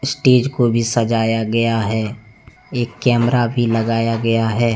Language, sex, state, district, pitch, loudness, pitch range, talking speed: Hindi, male, Jharkhand, Deoghar, 115 Hz, -17 LUFS, 115-120 Hz, 150 wpm